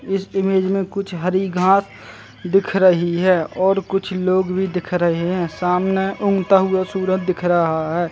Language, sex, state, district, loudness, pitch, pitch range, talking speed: Hindi, male, Chhattisgarh, Bastar, -18 LUFS, 185 Hz, 175-195 Hz, 170 wpm